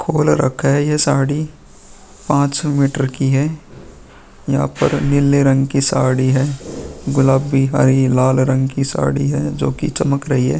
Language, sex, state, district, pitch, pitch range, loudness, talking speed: Hindi, male, Uttar Pradesh, Muzaffarnagar, 135 Hz, 130-140 Hz, -16 LUFS, 155 wpm